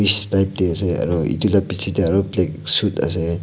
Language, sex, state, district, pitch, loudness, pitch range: Nagamese, male, Nagaland, Kohima, 95 Hz, -19 LUFS, 85-100 Hz